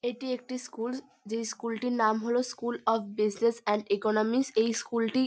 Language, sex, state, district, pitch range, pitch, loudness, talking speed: Bengali, female, West Bengal, North 24 Parganas, 220-250 Hz, 230 Hz, -30 LUFS, 195 wpm